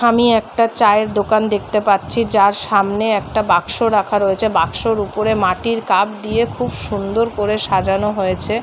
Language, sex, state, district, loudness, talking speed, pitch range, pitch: Bengali, female, West Bengal, North 24 Parganas, -16 LUFS, 160 wpm, 200-225 Hz, 210 Hz